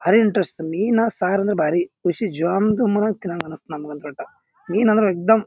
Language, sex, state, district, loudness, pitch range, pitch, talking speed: Kannada, male, Karnataka, Bijapur, -20 LUFS, 170-215 Hz, 195 Hz, 165 wpm